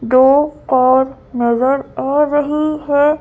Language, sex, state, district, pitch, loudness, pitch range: Hindi, female, Madhya Pradesh, Bhopal, 275 Hz, -15 LUFS, 260-295 Hz